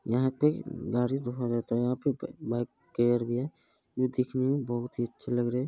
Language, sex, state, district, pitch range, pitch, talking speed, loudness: Maithili, male, Bihar, Araria, 120-130 Hz, 125 Hz, 230 wpm, -30 LUFS